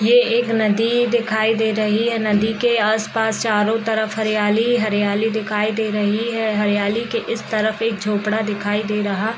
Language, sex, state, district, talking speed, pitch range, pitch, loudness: Hindi, female, Bihar, East Champaran, 185 wpm, 210-225 Hz, 220 Hz, -19 LUFS